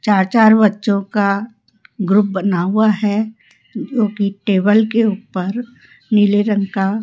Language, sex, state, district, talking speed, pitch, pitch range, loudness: Hindi, female, Rajasthan, Jaipur, 145 wpm, 205 Hz, 200-220 Hz, -16 LUFS